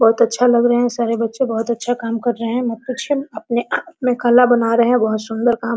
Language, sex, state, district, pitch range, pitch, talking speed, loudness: Hindi, female, Bihar, Araria, 230-245 Hz, 235 Hz, 260 wpm, -17 LUFS